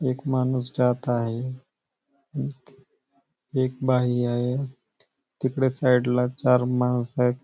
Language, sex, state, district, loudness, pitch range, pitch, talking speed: Marathi, male, Maharashtra, Nagpur, -24 LUFS, 125-130 Hz, 125 Hz, 90 wpm